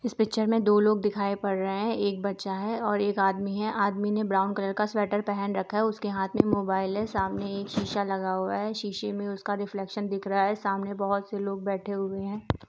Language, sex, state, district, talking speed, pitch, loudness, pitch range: Hindi, female, Jharkhand, Jamtara, 235 wpm, 200 Hz, -28 LUFS, 195-210 Hz